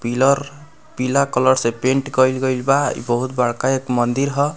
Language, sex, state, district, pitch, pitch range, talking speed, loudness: Bhojpuri, male, Bihar, Muzaffarpur, 130 Hz, 125-140 Hz, 185 wpm, -18 LUFS